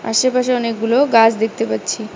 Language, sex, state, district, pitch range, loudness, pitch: Bengali, female, West Bengal, Cooch Behar, 225-250 Hz, -16 LUFS, 225 Hz